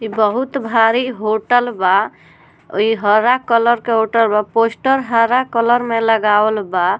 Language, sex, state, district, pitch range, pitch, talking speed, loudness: Bhojpuri, female, Bihar, Muzaffarpur, 215-240 Hz, 230 Hz, 170 wpm, -15 LUFS